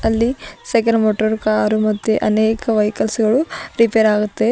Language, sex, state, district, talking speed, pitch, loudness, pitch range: Kannada, female, Karnataka, Bidar, 135 wpm, 220 Hz, -17 LUFS, 215-230 Hz